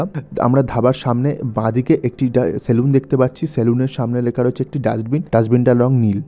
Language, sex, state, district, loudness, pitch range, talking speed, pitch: Bengali, male, West Bengal, North 24 Parganas, -17 LUFS, 120-135 Hz, 220 wpm, 125 Hz